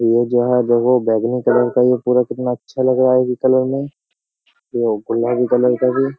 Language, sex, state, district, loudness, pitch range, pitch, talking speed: Hindi, male, Uttar Pradesh, Jyotiba Phule Nagar, -16 LUFS, 120-125 Hz, 125 Hz, 215 wpm